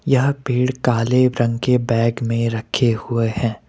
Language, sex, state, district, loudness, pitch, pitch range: Hindi, male, Rajasthan, Jaipur, -19 LUFS, 120 Hz, 115-125 Hz